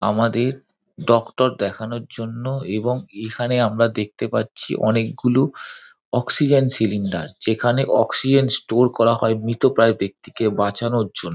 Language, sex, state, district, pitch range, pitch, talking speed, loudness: Bengali, male, West Bengal, Dakshin Dinajpur, 110-130 Hz, 115 Hz, 120 wpm, -20 LUFS